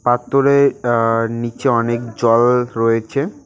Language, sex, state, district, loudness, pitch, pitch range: Bengali, male, West Bengal, Cooch Behar, -16 LUFS, 120 Hz, 115-135 Hz